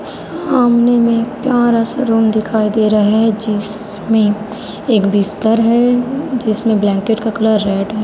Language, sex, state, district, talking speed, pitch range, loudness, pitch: Hindi, female, Chhattisgarh, Raipur, 140 wpm, 210-235 Hz, -14 LUFS, 220 Hz